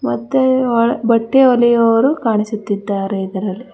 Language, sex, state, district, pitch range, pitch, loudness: Kannada, female, Karnataka, Bangalore, 200-245 Hz, 230 Hz, -15 LUFS